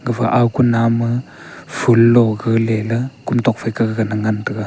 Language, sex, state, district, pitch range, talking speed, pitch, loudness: Wancho, male, Arunachal Pradesh, Longding, 110-120 Hz, 140 wpm, 115 Hz, -16 LUFS